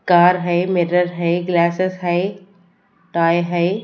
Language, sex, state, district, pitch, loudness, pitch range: Hindi, female, Punjab, Kapurthala, 175 Hz, -18 LUFS, 175-185 Hz